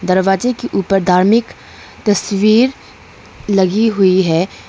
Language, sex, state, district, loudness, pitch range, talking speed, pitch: Hindi, female, Arunachal Pradesh, Lower Dibang Valley, -14 LUFS, 185-220 Hz, 100 wpm, 195 Hz